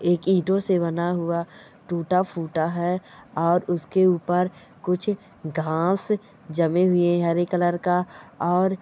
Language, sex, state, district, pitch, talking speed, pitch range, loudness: Hindi, female, Bihar, Bhagalpur, 175 Hz, 135 wpm, 170-185 Hz, -23 LUFS